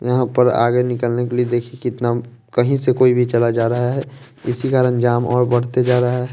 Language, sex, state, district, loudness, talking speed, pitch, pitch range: Hindi, male, Bihar, West Champaran, -17 LUFS, 225 wpm, 125 Hz, 120-125 Hz